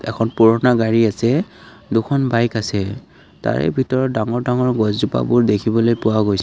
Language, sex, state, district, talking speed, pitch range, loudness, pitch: Assamese, male, Assam, Kamrup Metropolitan, 150 wpm, 110-125 Hz, -17 LUFS, 115 Hz